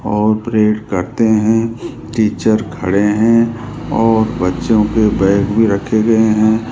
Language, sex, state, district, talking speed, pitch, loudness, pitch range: Hindi, male, Rajasthan, Jaipur, 135 wpm, 110 Hz, -14 LUFS, 105-115 Hz